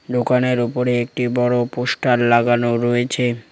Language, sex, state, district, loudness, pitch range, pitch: Bengali, male, West Bengal, Cooch Behar, -18 LUFS, 120-125 Hz, 120 Hz